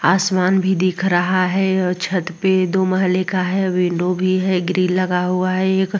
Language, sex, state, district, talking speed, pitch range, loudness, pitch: Hindi, female, Uttar Pradesh, Muzaffarnagar, 200 wpm, 180-190 Hz, -18 LUFS, 185 Hz